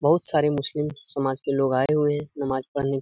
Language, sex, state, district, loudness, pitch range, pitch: Hindi, male, Uttar Pradesh, Etah, -24 LUFS, 135-150 Hz, 140 Hz